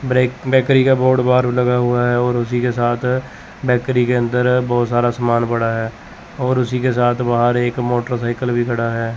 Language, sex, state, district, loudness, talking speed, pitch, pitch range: Hindi, male, Chandigarh, Chandigarh, -17 LUFS, 195 wpm, 120 Hz, 120-125 Hz